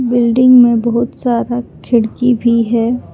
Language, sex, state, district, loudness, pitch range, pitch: Hindi, female, Jharkhand, Palamu, -12 LUFS, 235-245 Hz, 240 Hz